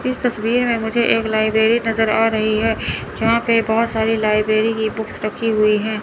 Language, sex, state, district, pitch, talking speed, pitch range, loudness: Hindi, male, Chandigarh, Chandigarh, 220 Hz, 200 wpm, 215-230 Hz, -18 LUFS